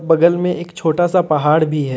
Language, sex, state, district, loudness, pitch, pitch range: Hindi, male, Jharkhand, Deoghar, -16 LUFS, 165 Hz, 155-175 Hz